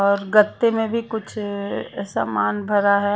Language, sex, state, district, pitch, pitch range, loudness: Hindi, female, Haryana, Charkhi Dadri, 205 Hz, 200-220 Hz, -21 LUFS